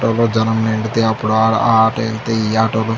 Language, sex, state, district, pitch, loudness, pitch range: Telugu, male, Andhra Pradesh, Chittoor, 110 Hz, -15 LUFS, 110-115 Hz